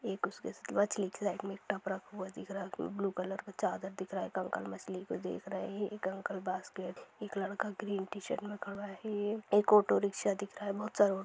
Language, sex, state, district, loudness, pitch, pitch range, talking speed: Hindi, female, Bihar, East Champaran, -36 LUFS, 200 Hz, 195-205 Hz, 270 wpm